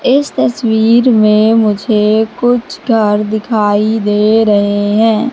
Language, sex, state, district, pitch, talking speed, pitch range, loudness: Hindi, female, Madhya Pradesh, Katni, 220 Hz, 110 wpm, 210-230 Hz, -11 LUFS